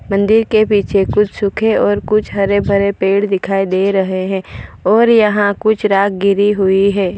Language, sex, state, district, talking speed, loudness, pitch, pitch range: Hindi, female, Gujarat, Valsad, 175 wpm, -13 LUFS, 200 Hz, 195-210 Hz